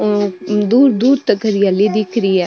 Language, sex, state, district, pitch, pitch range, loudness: Marwari, female, Rajasthan, Nagaur, 210 Hz, 200-225 Hz, -14 LUFS